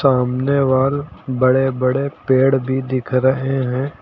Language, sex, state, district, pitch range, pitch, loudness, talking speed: Hindi, male, Uttar Pradesh, Lucknow, 130-135 Hz, 130 Hz, -17 LUFS, 135 wpm